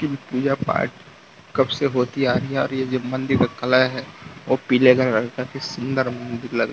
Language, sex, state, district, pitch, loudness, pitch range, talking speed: Hindi, male, Gujarat, Valsad, 130 Hz, -21 LUFS, 125-135 Hz, 215 wpm